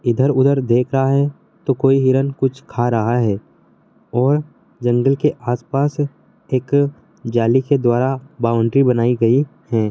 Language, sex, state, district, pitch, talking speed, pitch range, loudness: Hindi, male, Karnataka, Belgaum, 130 Hz, 150 wpm, 120-140 Hz, -18 LUFS